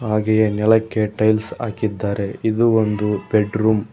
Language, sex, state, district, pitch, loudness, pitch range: Kannada, male, Karnataka, Koppal, 110 Hz, -19 LUFS, 105-110 Hz